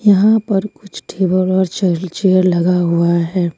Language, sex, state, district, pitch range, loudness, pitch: Hindi, female, Jharkhand, Ranchi, 175-195 Hz, -15 LUFS, 185 Hz